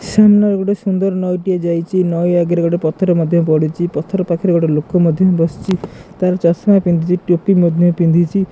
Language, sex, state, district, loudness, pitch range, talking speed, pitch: Odia, male, Odisha, Khordha, -14 LUFS, 170-190 Hz, 175 wpm, 175 Hz